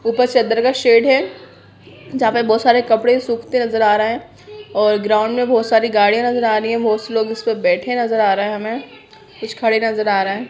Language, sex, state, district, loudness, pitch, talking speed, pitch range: Hindi, female, Bihar, Purnia, -16 LUFS, 225 Hz, 235 wpm, 215-245 Hz